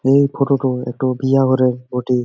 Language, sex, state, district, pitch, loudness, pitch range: Bengali, male, West Bengal, Jalpaiguri, 130 Hz, -17 LUFS, 125-135 Hz